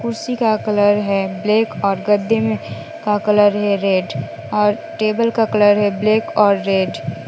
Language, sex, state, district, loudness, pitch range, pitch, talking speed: Hindi, female, West Bengal, Alipurduar, -17 LUFS, 200-220 Hz, 210 Hz, 175 wpm